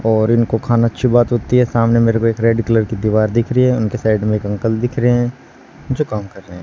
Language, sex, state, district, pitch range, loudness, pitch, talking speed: Hindi, male, Haryana, Charkhi Dadri, 110-120 Hz, -16 LUFS, 115 Hz, 280 wpm